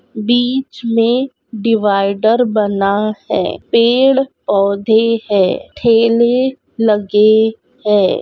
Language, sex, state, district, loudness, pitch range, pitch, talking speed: Hindi, female, Bihar, Purnia, -14 LUFS, 210-240 Hz, 225 Hz, 90 wpm